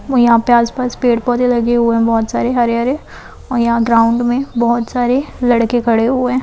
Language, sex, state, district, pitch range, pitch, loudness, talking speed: Maithili, female, Bihar, Supaul, 235-250 Hz, 240 Hz, -14 LUFS, 195 wpm